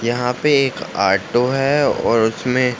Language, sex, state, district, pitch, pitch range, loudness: Hindi, male, Uttar Pradesh, Ghazipur, 125 Hz, 120-135 Hz, -17 LUFS